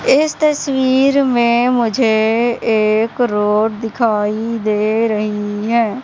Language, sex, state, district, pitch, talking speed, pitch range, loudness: Hindi, male, Madhya Pradesh, Katni, 230 Hz, 100 wpm, 215-250 Hz, -15 LUFS